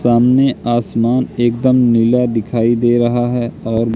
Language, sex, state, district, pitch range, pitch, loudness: Hindi, male, Madhya Pradesh, Katni, 115-125 Hz, 120 Hz, -14 LUFS